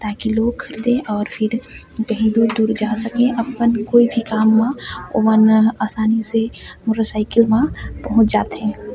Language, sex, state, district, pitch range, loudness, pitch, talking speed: Chhattisgarhi, female, Chhattisgarh, Sarguja, 220-230 Hz, -17 LUFS, 225 Hz, 150 wpm